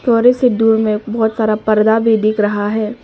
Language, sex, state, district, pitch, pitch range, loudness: Hindi, female, Arunachal Pradesh, Papum Pare, 220 Hz, 215-225 Hz, -14 LUFS